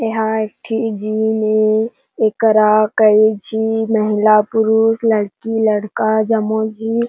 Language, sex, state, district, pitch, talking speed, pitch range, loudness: Chhattisgarhi, female, Chhattisgarh, Jashpur, 220 Hz, 110 wpm, 215-225 Hz, -15 LUFS